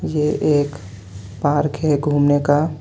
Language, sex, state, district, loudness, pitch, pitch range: Hindi, male, Jharkhand, Ranchi, -18 LUFS, 145 Hz, 145-150 Hz